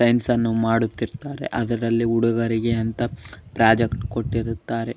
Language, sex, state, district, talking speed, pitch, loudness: Kannada, male, Karnataka, Bellary, 110 wpm, 115 Hz, -22 LUFS